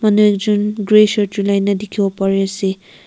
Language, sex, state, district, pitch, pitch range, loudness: Nagamese, female, Nagaland, Kohima, 200 Hz, 195-210 Hz, -15 LUFS